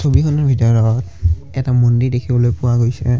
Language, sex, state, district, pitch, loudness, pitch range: Assamese, male, Assam, Kamrup Metropolitan, 120 Hz, -15 LUFS, 115-125 Hz